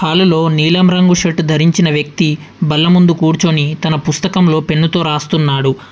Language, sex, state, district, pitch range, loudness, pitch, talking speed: Telugu, male, Telangana, Adilabad, 155-175 Hz, -12 LUFS, 160 Hz, 130 wpm